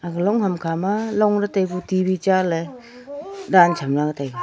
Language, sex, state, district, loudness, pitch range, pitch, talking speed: Wancho, female, Arunachal Pradesh, Longding, -20 LUFS, 170-205 Hz, 185 Hz, 200 wpm